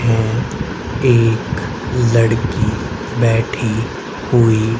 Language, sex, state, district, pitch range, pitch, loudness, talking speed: Hindi, male, Haryana, Rohtak, 110-120 Hz, 115 Hz, -17 LUFS, 60 wpm